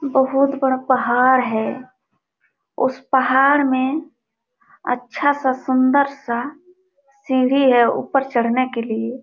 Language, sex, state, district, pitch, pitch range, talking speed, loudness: Hindi, female, Jharkhand, Sahebganj, 260 Hz, 250-275 Hz, 110 wpm, -18 LUFS